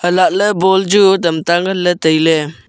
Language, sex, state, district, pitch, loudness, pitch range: Wancho, male, Arunachal Pradesh, Longding, 175 Hz, -12 LUFS, 160-190 Hz